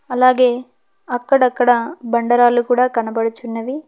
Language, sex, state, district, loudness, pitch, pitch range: Telugu, female, Telangana, Hyderabad, -16 LUFS, 245 Hz, 235-255 Hz